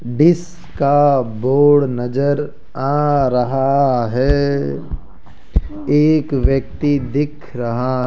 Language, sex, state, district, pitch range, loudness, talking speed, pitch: Hindi, male, Rajasthan, Jaipur, 125-145 Hz, -16 LUFS, 80 wpm, 135 Hz